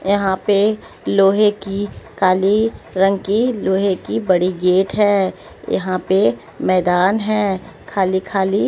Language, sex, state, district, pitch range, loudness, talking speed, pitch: Hindi, female, Haryana, Jhajjar, 185-205 Hz, -17 LUFS, 130 wpm, 195 Hz